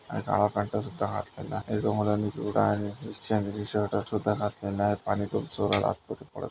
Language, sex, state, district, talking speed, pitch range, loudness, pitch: Marathi, male, Maharashtra, Nagpur, 175 wpm, 100-105 Hz, -29 LUFS, 105 Hz